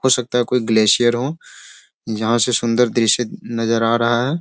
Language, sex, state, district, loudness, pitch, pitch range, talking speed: Hindi, male, Bihar, Sitamarhi, -17 LUFS, 120 Hz, 115-125 Hz, 190 wpm